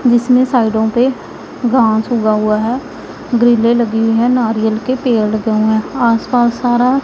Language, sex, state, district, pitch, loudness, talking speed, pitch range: Hindi, female, Punjab, Pathankot, 235 Hz, -13 LUFS, 145 wpm, 220-245 Hz